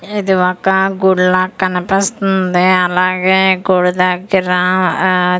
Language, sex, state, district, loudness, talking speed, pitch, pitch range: Telugu, female, Andhra Pradesh, Manyam, -13 LUFS, 90 wpm, 185 Hz, 180-190 Hz